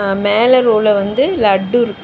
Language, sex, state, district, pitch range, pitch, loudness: Tamil, female, Tamil Nadu, Chennai, 200-240 Hz, 210 Hz, -13 LUFS